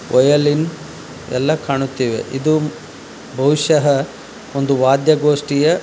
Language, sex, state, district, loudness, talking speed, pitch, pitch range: Kannada, male, Karnataka, Dharwad, -16 LUFS, 70 wpm, 145 Hz, 135-155 Hz